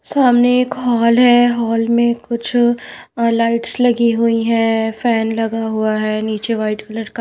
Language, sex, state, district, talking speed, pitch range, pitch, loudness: Hindi, female, Haryana, Rohtak, 175 wpm, 225-240 Hz, 230 Hz, -15 LUFS